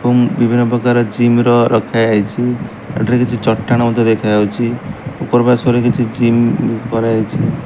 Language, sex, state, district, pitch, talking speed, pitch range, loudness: Odia, male, Odisha, Malkangiri, 120 Hz, 125 wpm, 115-120 Hz, -14 LUFS